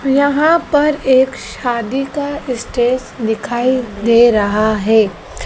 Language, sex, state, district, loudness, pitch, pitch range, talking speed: Hindi, female, Madhya Pradesh, Dhar, -15 LUFS, 250 Hz, 220-280 Hz, 110 wpm